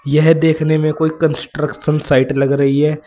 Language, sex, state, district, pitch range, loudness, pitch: Hindi, male, Uttar Pradesh, Saharanpur, 145-155 Hz, -15 LUFS, 155 Hz